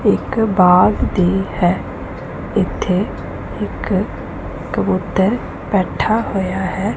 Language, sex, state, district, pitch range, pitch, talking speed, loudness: Punjabi, female, Punjab, Pathankot, 185-215 Hz, 195 Hz, 85 wpm, -18 LUFS